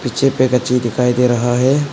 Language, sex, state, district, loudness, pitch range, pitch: Hindi, male, Arunachal Pradesh, Papum Pare, -15 LUFS, 125-130 Hz, 125 Hz